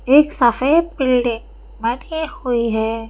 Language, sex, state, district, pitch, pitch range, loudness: Hindi, female, Madhya Pradesh, Bhopal, 250 Hz, 230-295 Hz, -18 LUFS